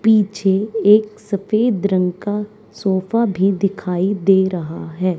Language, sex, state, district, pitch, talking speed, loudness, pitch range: Hindi, female, Haryana, Charkhi Dadri, 200 Hz, 125 wpm, -18 LUFS, 190-210 Hz